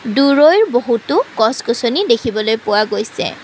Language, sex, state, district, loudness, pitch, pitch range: Assamese, female, Assam, Kamrup Metropolitan, -14 LUFS, 230 Hz, 220-250 Hz